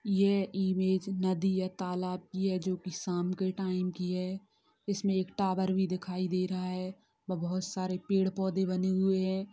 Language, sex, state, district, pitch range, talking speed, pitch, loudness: Hindi, female, Bihar, Sitamarhi, 185-190 Hz, 180 wpm, 185 Hz, -32 LUFS